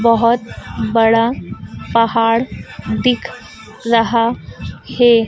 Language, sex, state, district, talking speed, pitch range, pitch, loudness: Hindi, female, Madhya Pradesh, Dhar, 70 wpm, 230-235 Hz, 230 Hz, -16 LUFS